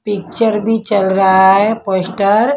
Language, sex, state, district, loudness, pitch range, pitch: Hindi, female, Maharashtra, Mumbai Suburban, -13 LUFS, 190-220 Hz, 205 Hz